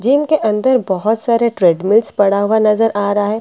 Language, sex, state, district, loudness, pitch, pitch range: Hindi, female, Bihar, Katihar, -14 LUFS, 215 Hz, 205-235 Hz